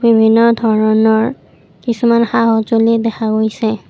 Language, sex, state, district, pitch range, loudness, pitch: Assamese, female, Assam, Kamrup Metropolitan, 220-230 Hz, -13 LUFS, 225 Hz